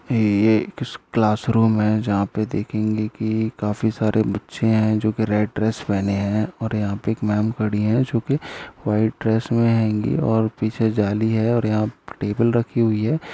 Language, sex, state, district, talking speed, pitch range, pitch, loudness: Hindi, male, Bihar, Jamui, 190 wpm, 105-115 Hz, 110 Hz, -21 LUFS